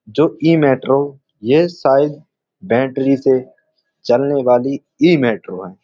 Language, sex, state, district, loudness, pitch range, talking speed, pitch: Hindi, male, Uttar Pradesh, Budaun, -15 LUFS, 130-150 Hz, 125 wpm, 135 Hz